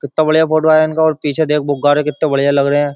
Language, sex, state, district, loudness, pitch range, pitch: Hindi, male, Uttar Pradesh, Jyotiba Phule Nagar, -14 LUFS, 145-155 Hz, 150 Hz